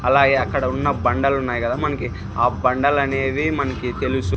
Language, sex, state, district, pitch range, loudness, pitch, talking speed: Telugu, male, Andhra Pradesh, Sri Satya Sai, 120-140 Hz, -20 LUFS, 130 Hz, 165 wpm